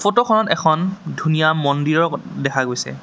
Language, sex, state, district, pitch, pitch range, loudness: Assamese, male, Assam, Sonitpur, 160 Hz, 140-190 Hz, -18 LUFS